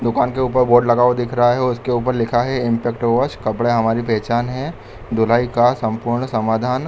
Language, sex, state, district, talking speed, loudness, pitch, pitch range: Hindi, male, Jharkhand, Jamtara, 220 wpm, -18 LUFS, 120 Hz, 115-125 Hz